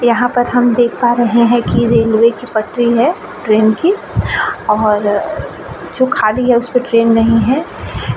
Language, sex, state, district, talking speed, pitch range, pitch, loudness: Hindi, female, Bihar, Vaishali, 170 wpm, 225-245 Hz, 235 Hz, -13 LUFS